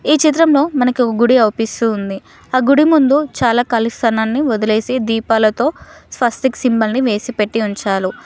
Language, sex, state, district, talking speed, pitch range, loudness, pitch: Telugu, female, Telangana, Mahabubabad, 155 wpm, 220-265 Hz, -15 LUFS, 235 Hz